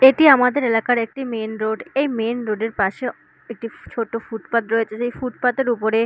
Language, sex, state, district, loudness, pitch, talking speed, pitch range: Bengali, female, West Bengal, Malda, -20 LUFS, 230 Hz, 200 wpm, 225-250 Hz